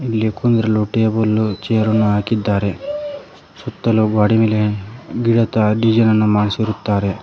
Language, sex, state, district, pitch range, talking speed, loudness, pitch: Kannada, male, Karnataka, Koppal, 105-115 Hz, 110 wpm, -16 LUFS, 110 Hz